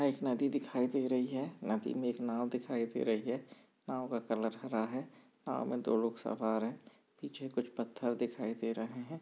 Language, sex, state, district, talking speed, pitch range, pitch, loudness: Hindi, male, Andhra Pradesh, Visakhapatnam, 215 wpm, 115-130 Hz, 120 Hz, -37 LUFS